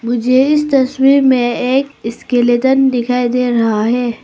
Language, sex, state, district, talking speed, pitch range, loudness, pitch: Hindi, female, Arunachal Pradesh, Papum Pare, 140 wpm, 240-265 Hz, -13 LUFS, 250 Hz